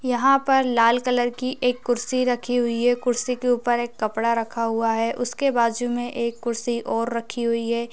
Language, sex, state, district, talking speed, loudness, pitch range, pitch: Hindi, female, Bihar, Bhagalpur, 205 wpm, -22 LUFS, 235-250 Hz, 240 Hz